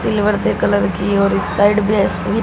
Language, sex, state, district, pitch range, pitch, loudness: Hindi, female, Punjab, Fazilka, 125-210 Hz, 200 Hz, -16 LUFS